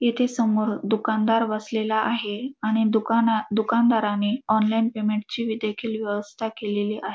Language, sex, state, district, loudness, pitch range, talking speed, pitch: Marathi, female, Maharashtra, Dhule, -24 LUFS, 215-230 Hz, 125 wpm, 220 Hz